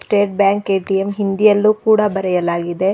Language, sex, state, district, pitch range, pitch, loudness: Kannada, female, Karnataka, Dakshina Kannada, 195-205 Hz, 200 Hz, -16 LUFS